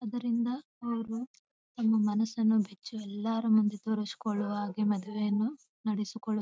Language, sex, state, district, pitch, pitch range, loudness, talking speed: Kannada, female, Karnataka, Bijapur, 220 Hz, 210-225 Hz, -32 LUFS, 105 wpm